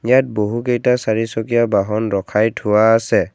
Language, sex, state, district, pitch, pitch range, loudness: Assamese, male, Assam, Kamrup Metropolitan, 115 Hz, 105-120 Hz, -17 LUFS